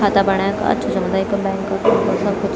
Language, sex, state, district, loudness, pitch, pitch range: Garhwali, female, Uttarakhand, Tehri Garhwal, -18 LUFS, 200 Hz, 195-205 Hz